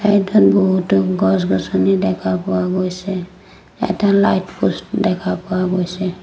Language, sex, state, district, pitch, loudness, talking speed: Assamese, female, Assam, Sonitpur, 180 Hz, -17 LUFS, 125 wpm